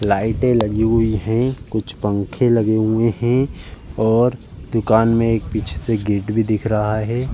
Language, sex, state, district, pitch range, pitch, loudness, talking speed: Hindi, male, Uttar Pradesh, Jalaun, 105-115 Hz, 110 Hz, -18 LUFS, 165 wpm